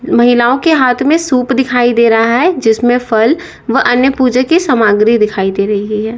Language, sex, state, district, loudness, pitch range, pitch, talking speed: Hindi, female, Uttar Pradesh, Lalitpur, -11 LUFS, 225-265 Hz, 245 Hz, 195 wpm